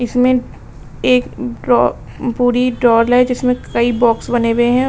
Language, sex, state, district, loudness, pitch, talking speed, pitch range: Hindi, female, Uttar Pradesh, Lalitpur, -15 LUFS, 245 Hz, 125 wpm, 240-250 Hz